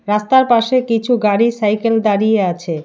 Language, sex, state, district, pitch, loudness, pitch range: Bengali, female, West Bengal, Alipurduar, 220 Hz, -14 LUFS, 205-235 Hz